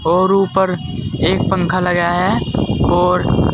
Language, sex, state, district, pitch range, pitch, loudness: Hindi, male, Uttar Pradesh, Saharanpur, 175-190 Hz, 180 Hz, -16 LUFS